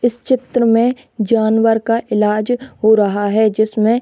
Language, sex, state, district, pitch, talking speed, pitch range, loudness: Hindi, female, Uttar Pradesh, Hamirpur, 225 Hz, 165 wpm, 215-240 Hz, -15 LUFS